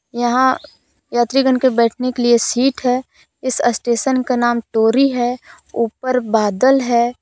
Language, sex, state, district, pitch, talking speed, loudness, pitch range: Hindi, female, Jharkhand, Palamu, 245 Hz, 140 wpm, -16 LUFS, 235-260 Hz